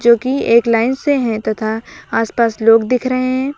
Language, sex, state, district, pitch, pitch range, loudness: Hindi, female, Uttar Pradesh, Lucknow, 235 Hz, 225-255 Hz, -15 LUFS